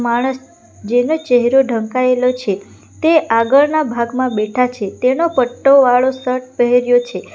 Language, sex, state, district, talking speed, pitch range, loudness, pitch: Gujarati, female, Gujarat, Valsad, 130 wpm, 240-265 Hz, -15 LUFS, 250 Hz